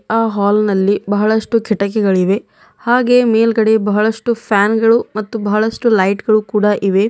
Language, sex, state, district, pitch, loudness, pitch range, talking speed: Kannada, female, Karnataka, Bidar, 215 Hz, -14 LUFS, 205-225 Hz, 135 wpm